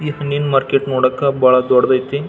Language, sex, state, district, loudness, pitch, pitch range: Kannada, male, Karnataka, Belgaum, -15 LUFS, 135 Hz, 130-140 Hz